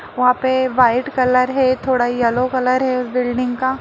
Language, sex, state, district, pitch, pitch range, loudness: Hindi, female, Bihar, Lakhisarai, 255 Hz, 250-260 Hz, -17 LUFS